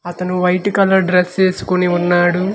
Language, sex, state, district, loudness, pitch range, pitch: Telugu, male, Andhra Pradesh, Manyam, -15 LUFS, 180-190 Hz, 180 Hz